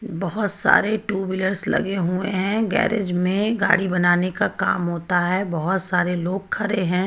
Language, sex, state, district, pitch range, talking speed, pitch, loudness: Hindi, female, Jharkhand, Ranchi, 180-205 Hz, 170 wpm, 190 Hz, -21 LUFS